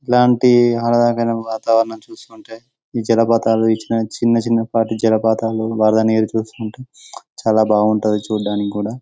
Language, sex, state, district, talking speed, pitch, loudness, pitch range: Telugu, male, Telangana, Karimnagar, 115 wpm, 115 Hz, -16 LUFS, 110-115 Hz